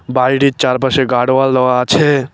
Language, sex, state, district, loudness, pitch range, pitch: Bengali, male, West Bengal, Cooch Behar, -13 LUFS, 125-135 Hz, 130 Hz